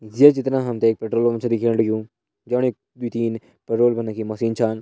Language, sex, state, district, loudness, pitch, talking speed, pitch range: Garhwali, male, Uttarakhand, Tehri Garhwal, -21 LUFS, 115 Hz, 250 wpm, 110-120 Hz